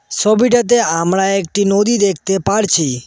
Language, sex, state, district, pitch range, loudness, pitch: Bengali, male, West Bengal, Cooch Behar, 190-220 Hz, -14 LUFS, 200 Hz